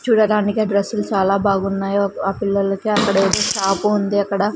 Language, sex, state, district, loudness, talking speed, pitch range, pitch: Telugu, female, Andhra Pradesh, Sri Satya Sai, -18 LUFS, 160 wpm, 195-210 Hz, 200 Hz